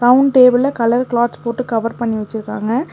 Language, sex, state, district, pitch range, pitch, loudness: Tamil, female, Tamil Nadu, Nilgiris, 225-255 Hz, 235 Hz, -15 LUFS